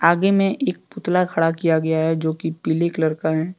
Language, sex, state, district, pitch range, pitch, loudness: Hindi, male, Jharkhand, Deoghar, 160-180 Hz, 165 Hz, -20 LUFS